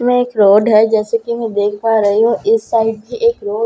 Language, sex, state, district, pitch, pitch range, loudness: Hindi, female, Bihar, Katihar, 230 Hz, 215-250 Hz, -14 LUFS